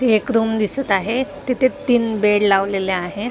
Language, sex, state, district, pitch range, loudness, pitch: Marathi, female, Maharashtra, Mumbai Suburban, 195-250 Hz, -18 LUFS, 220 Hz